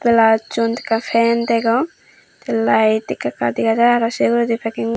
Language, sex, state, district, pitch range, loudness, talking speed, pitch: Chakma, female, Tripura, Dhalai, 225-235 Hz, -17 LUFS, 180 wpm, 230 Hz